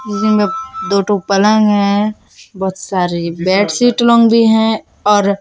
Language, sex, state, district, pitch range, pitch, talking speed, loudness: Hindi, female, Chhattisgarh, Raipur, 195-220 Hz, 210 Hz, 120 wpm, -13 LUFS